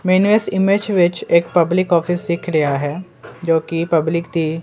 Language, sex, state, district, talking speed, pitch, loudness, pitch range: Punjabi, male, Punjab, Kapurthala, 180 wpm, 170 Hz, -17 LUFS, 165-185 Hz